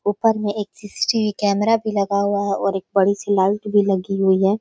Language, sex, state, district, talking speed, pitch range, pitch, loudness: Hindi, male, Bihar, Samastipur, 220 wpm, 195-210 Hz, 200 Hz, -19 LUFS